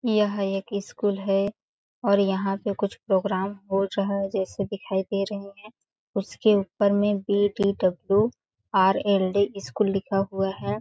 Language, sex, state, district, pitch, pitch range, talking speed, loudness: Hindi, female, Chhattisgarh, Sarguja, 200 Hz, 195-205 Hz, 145 wpm, -25 LUFS